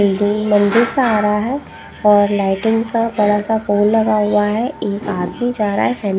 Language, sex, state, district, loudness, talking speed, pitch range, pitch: Hindi, female, Punjab, Pathankot, -16 LUFS, 215 wpm, 205-225 Hz, 210 Hz